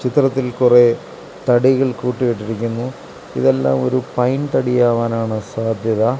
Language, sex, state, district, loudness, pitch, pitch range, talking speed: Malayalam, male, Kerala, Kasaragod, -17 LUFS, 120 Hz, 115-130 Hz, 105 wpm